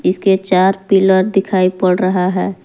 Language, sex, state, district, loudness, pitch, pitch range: Hindi, female, Jharkhand, Palamu, -14 LUFS, 190 Hz, 185-195 Hz